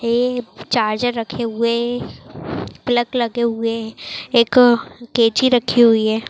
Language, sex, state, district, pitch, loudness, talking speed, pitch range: Hindi, female, Maharashtra, Dhule, 235 Hz, -18 LUFS, 135 wpm, 230-245 Hz